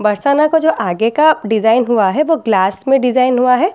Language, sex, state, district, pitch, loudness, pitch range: Hindi, female, Bihar, Katihar, 250 Hz, -13 LUFS, 220-305 Hz